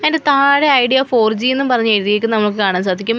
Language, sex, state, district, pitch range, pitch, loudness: Malayalam, female, Kerala, Kollam, 210-275 Hz, 235 Hz, -14 LUFS